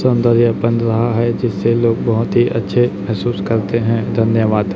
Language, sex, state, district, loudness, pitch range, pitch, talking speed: Hindi, male, Chhattisgarh, Raipur, -16 LUFS, 110-120 Hz, 115 Hz, 175 wpm